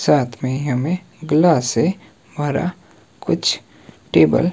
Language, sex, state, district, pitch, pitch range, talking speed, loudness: Hindi, male, Himachal Pradesh, Shimla, 150 Hz, 130-175 Hz, 120 wpm, -19 LUFS